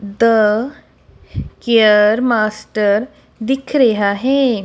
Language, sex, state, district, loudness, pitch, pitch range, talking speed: Punjabi, female, Punjab, Kapurthala, -14 LUFS, 225 Hz, 210-255 Hz, 75 wpm